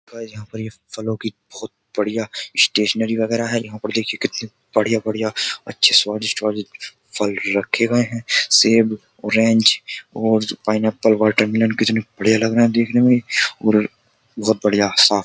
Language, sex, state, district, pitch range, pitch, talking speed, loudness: Hindi, male, Uttar Pradesh, Jyotiba Phule Nagar, 105-115 Hz, 110 Hz, 160 wpm, -18 LUFS